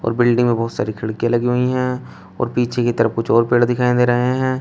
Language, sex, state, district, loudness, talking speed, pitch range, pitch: Hindi, male, Uttar Pradesh, Shamli, -18 LUFS, 245 wpm, 115-125 Hz, 120 Hz